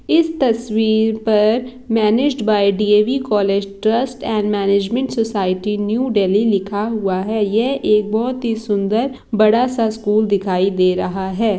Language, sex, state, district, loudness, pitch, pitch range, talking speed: Hindi, female, Bihar, East Champaran, -17 LUFS, 215 Hz, 200-230 Hz, 150 wpm